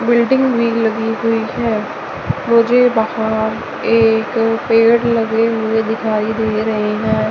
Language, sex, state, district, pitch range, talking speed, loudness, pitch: Hindi, male, Chandigarh, Chandigarh, 220-230 Hz, 125 wpm, -15 LUFS, 225 Hz